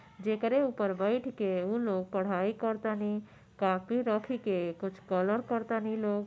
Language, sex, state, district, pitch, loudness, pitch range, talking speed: Bhojpuri, female, Uttar Pradesh, Gorakhpur, 210 Hz, -32 LUFS, 190-225 Hz, 135 wpm